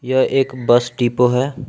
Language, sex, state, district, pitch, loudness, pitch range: Hindi, male, Jharkhand, Palamu, 125 Hz, -16 LUFS, 120-130 Hz